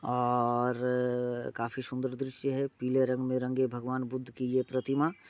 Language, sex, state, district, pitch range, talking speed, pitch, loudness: Hindi, male, Bihar, Muzaffarpur, 125-130 Hz, 160 wpm, 130 Hz, -32 LUFS